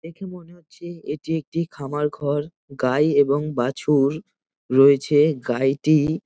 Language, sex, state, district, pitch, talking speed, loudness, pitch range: Bengali, male, West Bengal, Jalpaiguri, 150 Hz, 115 wpm, -21 LUFS, 140-160 Hz